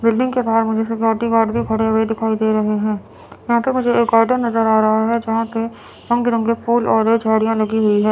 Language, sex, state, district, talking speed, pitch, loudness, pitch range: Hindi, female, Chandigarh, Chandigarh, 245 wpm, 225 Hz, -17 LUFS, 220-235 Hz